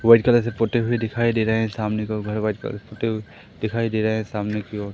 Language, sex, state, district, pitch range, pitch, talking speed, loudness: Hindi, male, Madhya Pradesh, Umaria, 105-115 Hz, 110 Hz, 290 wpm, -23 LUFS